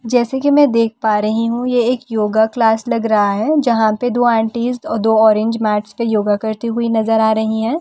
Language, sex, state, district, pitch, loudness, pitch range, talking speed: Hindi, female, Delhi, New Delhi, 225 Hz, -15 LUFS, 220-240 Hz, 230 wpm